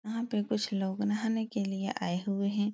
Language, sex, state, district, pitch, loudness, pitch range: Hindi, female, Uttar Pradesh, Etah, 205 Hz, -32 LUFS, 195-220 Hz